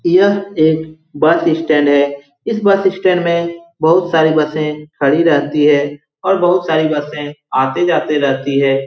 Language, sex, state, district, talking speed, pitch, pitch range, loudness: Hindi, male, Bihar, Saran, 150 wpm, 155 Hz, 145-170 Hz, -14 LUFS